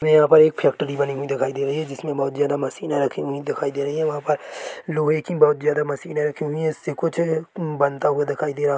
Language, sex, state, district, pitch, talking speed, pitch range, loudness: Hindi, male, Chhattisgarh, Korba, 150 Hz, 255 wpm, 140-155 Hz, -22 LUFS